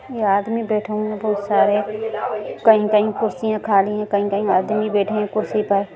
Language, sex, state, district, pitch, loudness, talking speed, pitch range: Hindi, female, Bihar, Jamui, 210 Hz, -19 LUFS, 170 wpm, 205-215 Hz